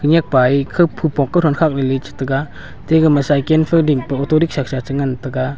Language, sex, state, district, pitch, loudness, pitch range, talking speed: Wancho, male, Arunachal Pradesh, Longding, 140 Hz, -16 LUFS, 135-160 Hz, 205 wpm